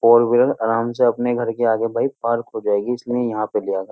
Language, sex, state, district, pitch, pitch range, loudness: Hindi, male, Uttar Pradesh, Jyotiba Phule Nagar, 115 Hz, 110-120 Hz, -19 LUFS